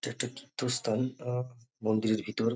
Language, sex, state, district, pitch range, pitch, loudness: Bengali, male, West Bengal, North 24 Parganas, 110-125 Hz, 120 Hz, -32 LUFS